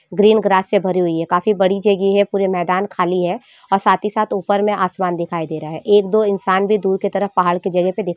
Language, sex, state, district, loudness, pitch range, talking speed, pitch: Hindi, female, Jharkhand, Sahebganj, -17 LUFS, 180-205 Hz, 270 wpm, 195 Hz